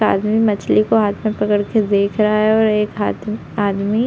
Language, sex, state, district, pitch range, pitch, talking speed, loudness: Hindi, female, Uttar Pradesh, Deoria, 205-215 Hz, 210 Hz, 220 wpm, -17 LUFS